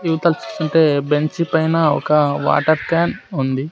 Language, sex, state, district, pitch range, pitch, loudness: Telugu, male, Andhra Pradesh, Sri Satya Sai, 150-165 Hz, 155 Hz, -17 LUFS